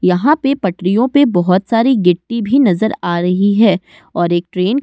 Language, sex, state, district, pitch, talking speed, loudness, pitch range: Hindi, female, Uttar Pradesh, Budaun, 200 Hz, 200 wpm, -14 LUFS, 180-245 Hz